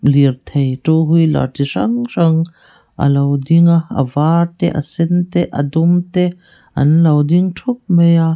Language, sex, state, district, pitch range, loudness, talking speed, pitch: Mizo, female, Mizoram, Aizawl, 145-175 Hz, -14 LUFS, 180 wpm, 165 Hz